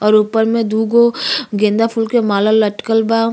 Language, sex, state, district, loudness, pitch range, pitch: Bhojpuri, female, Uttar Pradesh, Gorakhpur, -14 LUFS, 215-230 Hz, 225 Hz